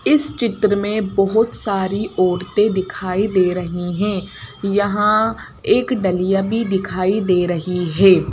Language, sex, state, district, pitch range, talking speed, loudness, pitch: Hindi, female, Madhya Pradesh, Bhopal, 185-210 Hz, 130 wpm, -18 LUFS, 195 Hz